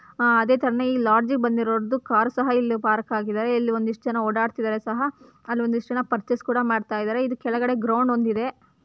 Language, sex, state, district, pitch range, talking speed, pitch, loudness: Kannada, female, Karnataka, Gulbarga, 225-250 Hz, 195 wpm, 235 Hz, -23 LUFS